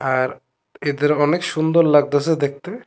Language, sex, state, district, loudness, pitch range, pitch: Bengali, male, Tripura, West Tripura, -18 LUFS, 145-165 Hz, 150 Hz